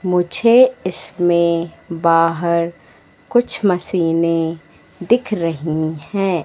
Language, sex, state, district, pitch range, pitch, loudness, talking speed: Hindi, female, Madhya Pradesh, Katni, 165-190 Hz, 170 Hz, -17 LUFS, 75 wpm